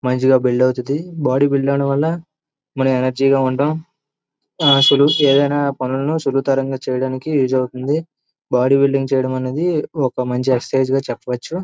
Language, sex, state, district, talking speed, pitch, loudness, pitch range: Telugu, male, Andhra Pradesh, Srikakulam, 145 wpm, 135 Hz, -17 LUFS, 130-145 Hz